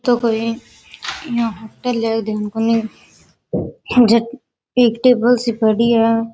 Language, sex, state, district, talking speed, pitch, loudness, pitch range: Rajasthani, female, Rajasthan, Nagaur, 115 wpm, 230 Hz, -17 LUFS, 225-240 Hz